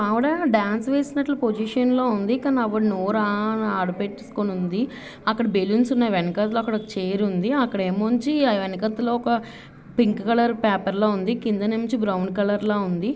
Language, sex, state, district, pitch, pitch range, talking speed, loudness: Telugu, female, Andhra Pradesh, Visakhapatnam, 220 Hz, 205-240 Hz, 175 wpm, -23 LUFS